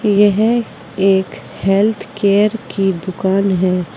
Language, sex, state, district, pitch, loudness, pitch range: Hindi, female, Uttar Pradesh, Saharanpur, 195 Hz, -15 LUFS, 190-210 Hz